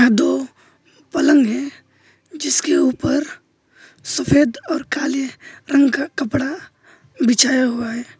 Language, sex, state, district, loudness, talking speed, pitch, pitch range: Hindi, male, West Bengal, Alipurduar, -18 LUFS, 100 wpm, 280 Hz, 260-305 Hz